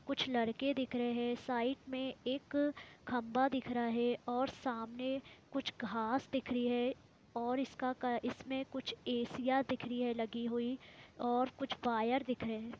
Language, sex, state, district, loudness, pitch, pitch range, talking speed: Hindi, female, Jharkhand, Sahebganj, -38 LUFS, 250 Hz, 240-265 Hz, 165 wpm